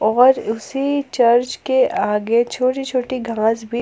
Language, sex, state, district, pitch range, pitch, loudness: Hindi, female, Jharkhand, Palamu, 225-260 Hz, 245 Hz, -18 LUFS